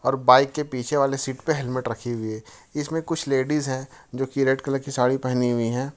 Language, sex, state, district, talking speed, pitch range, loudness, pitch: Hindi, male, Jharkhand, Ranchi, 220 wpm, 125-140 Hz, -24 LUFS, 135 Hz